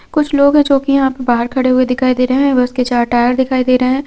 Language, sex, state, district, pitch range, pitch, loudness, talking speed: Hindi, female, Chhattisgarh, Korba, 250-275 Hz, 255 Hz, -13 LUFS, 325 wpm